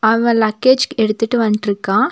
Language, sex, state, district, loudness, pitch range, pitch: Tamil, female, Tamil Nadu, Nilgiris, -15 LUFS, 215-245 Hz, 225 Hz